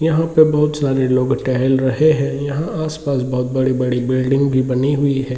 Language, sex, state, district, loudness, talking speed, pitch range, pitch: Hindi, male, Bihar, Muzaffarpur, -17 LUFS, 190 wpm, 130-150 Hz, 135 Hz